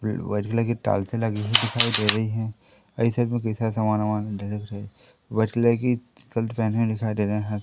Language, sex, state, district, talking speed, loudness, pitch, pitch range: Hindi, male, Madhya Pradesh, Katni, 150 wpm, -24 LUFS, 110 Hz, 105-115 Hz